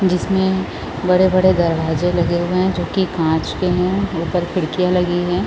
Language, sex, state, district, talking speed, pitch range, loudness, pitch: Hindi, female, Chhattisgarh, Raigarh, 165 wpm, 175-185 Hz, -18 LUFS, 180 Hz